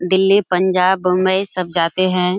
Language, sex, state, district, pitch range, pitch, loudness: Hindi, female, Bihar, Kishanganj, 180-190 Hz, 185 Hz, -16 LUFS